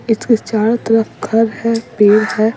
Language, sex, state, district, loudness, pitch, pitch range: Hindi, female, Bihar, Patna, -14 LUFS, 225 Hz, 220-230 Hz